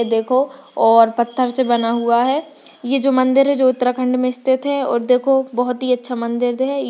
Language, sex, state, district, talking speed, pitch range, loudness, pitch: Hindi, female, Uttarakhand, Tehri Garhwal, 200 wpm, 240-270 Hz, -17 LUFS, 255 Hz